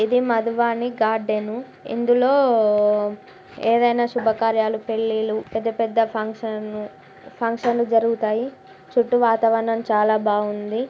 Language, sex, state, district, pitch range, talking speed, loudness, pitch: Telugu, female, Telangana, Karimnagar, 215-235 Hz, 95 wpm, -21 LUFS, 225 Hz